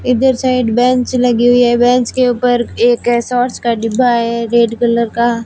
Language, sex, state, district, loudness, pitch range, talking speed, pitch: Hindi, female, Rajasthan, Barmer, -13 LUFS, 235-250 Hz, 185 wpm, 240 Hz